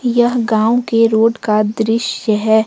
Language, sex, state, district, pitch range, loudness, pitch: Hindi, female, Jharkhand, Ranchi, 220-235 Hz, -14 LUFS, 225 Hz